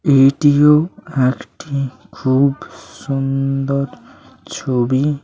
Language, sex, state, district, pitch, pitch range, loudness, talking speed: Bengali, male, West Bengal, Paschim Medinipur, 135 Hz, 135-145 Hz, -17 LUFS, 55 wpm